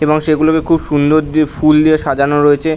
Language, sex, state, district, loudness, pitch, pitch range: Bengali, male, West Bengal, North 24 Parganas, -12 LUFS, 155 Hz, 145-155 Hz